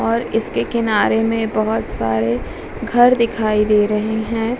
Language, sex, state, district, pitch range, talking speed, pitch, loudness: Hindi, female, Bihar, Vaishali, 210-230 Hz, 145 wpm, 220 Hz, -17 LUFS